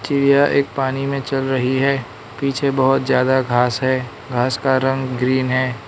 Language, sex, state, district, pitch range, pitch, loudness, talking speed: Hindi, male, Arunachal Pradesh, Lower Dibang Valley, 125-135 Hz, 130 Hz, -18 LUFS, 175 wpm